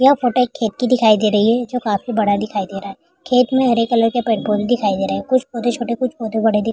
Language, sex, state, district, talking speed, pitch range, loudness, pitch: Hindi, female, Uttar Pradesh, Jalaun, 275 wpm, 215-250 Hz, -17 LUFS, 230 Hz